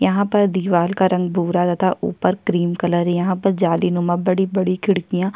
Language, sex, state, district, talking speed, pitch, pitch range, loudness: Hindi, female, Chhattisgarh, Kabirdham, 170 wpm, 185 Hz, 175-190 Hz, -19 LUFS